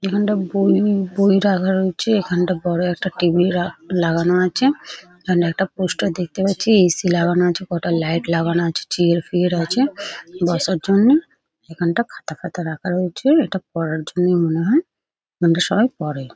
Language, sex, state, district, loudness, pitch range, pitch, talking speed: Bengali, female, West Bengal, Paschim Medinipur, -18 LUFS, 170-195 Hz, 180 Hz, 185 wpm